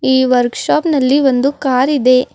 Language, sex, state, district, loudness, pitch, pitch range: Kannada, female, Karnataka, Bidar, -13 LUFS, 260 Hz, 255-280 Hz